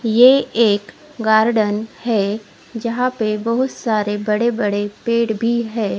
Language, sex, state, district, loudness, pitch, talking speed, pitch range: Hindi, female, Odisha, Khordha, -18 LUFS, 225 Hz, 130 wpm, 210-235 Hz